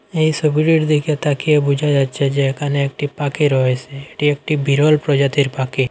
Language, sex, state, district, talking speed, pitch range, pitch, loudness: Bengali, male, Assam, Hailakandi, 165 wpm, 140-150 Hz, 145 Hz, -17 LUFS